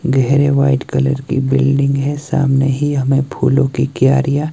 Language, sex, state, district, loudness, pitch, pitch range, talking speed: Hindi, male, Himachal Pradesh, Shimla, -15 LUFS, 140 Hz, 135-140 Hz, 160 wpm